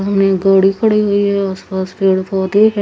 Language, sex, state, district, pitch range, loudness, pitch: Hindi, female, Haryana, Charkhi Dadri, 190-205 Hz, -14 LUFS, 195 Hz